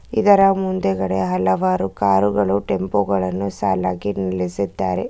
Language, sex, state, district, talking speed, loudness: Kannada, female, Karnataka, Bangalore, 105 wpm, -19 LUFS